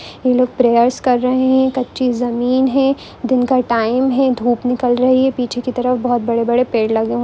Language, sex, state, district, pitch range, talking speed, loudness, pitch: Hindi, female, Andhra Pradesh, Chittoor, 240-255 Hz, 230 wpm, -15 LUFS, 250 Hz